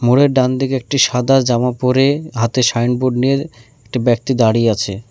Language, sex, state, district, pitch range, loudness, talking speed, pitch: Bengali, male, West Bengal, Alipurduar, 120-135 Hz, -15 LUFS, 175 wpm, 125 Hz